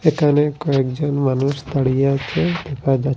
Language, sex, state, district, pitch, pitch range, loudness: Bengali, male, Assam, Hailakandi, 140 Hz, 135-150 Hz, -19 LUFS